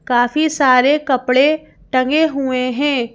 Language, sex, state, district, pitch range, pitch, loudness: Hindi, female, Madhya Pradesh, Bhopal, 255-295 Hz, 265 Hz, -15 LUFS